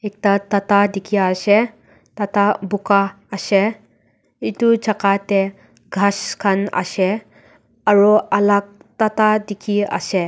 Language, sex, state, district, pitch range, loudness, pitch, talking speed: Nagamese, female, Nagaland, Dimapur, 195-210 Hz, -18 LUFS, 200 Hz, 105 wpm